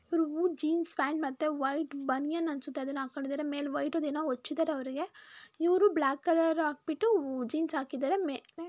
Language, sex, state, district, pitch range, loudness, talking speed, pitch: Kannada, female, Karnataka, Mysore, 280-330 Hz, -32 LUFS, 95 wpm, 305 Hz